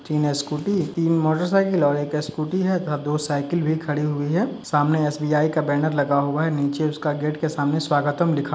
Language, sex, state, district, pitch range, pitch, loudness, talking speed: Hindi, male, Uttar Pradesh, Muzaffarnagar, 145-160 Hz, 150 Hz, -22 LUFS, 210 wpm